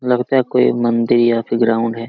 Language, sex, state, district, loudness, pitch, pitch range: Hindi, male, Jharkhand, Jamtara, -15 LUFS, 120 Hz, 115-125 Hz